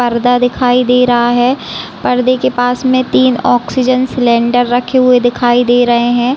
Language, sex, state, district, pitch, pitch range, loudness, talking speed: Hindi, female, Chhattisgarh, Raigarh, 245 Hz, 245-255 Hz, -11 LUFS, 160 wpm